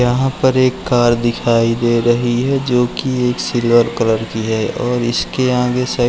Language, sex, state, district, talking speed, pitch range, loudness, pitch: Hindi, male, Uttarakhand, Uttarkashi, 195 wpm, 120-125 Hz, -15 LUFS, 120 Hz